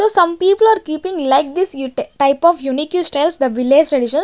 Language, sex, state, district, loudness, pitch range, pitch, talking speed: English, female, Maharashtra, Gondia, -15 LUFS, 275-360 Hz, 310 Hz, 210 wpm